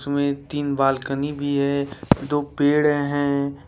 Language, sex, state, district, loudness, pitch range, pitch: Hindi, male, Jharkhand, Ranchi, -22 LUFS, 140-145 Hz, 140 Hz